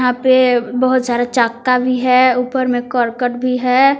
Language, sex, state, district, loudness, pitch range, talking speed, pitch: Hindi, female, Jharkhand, Palamu, -14 LUFS, 245-255 Hz, 180 wpm, 250 Hz